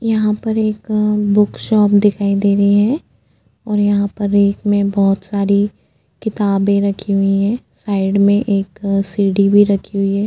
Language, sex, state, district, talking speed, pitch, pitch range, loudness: Hindi, female, Goa, North and South Goa, 165 wpm, 200 Hz, 200-210 Hz, -15 LUFS